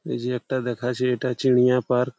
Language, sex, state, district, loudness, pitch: Bengali, male, West Bengal, Malda, -23 LUFS, 125 Hz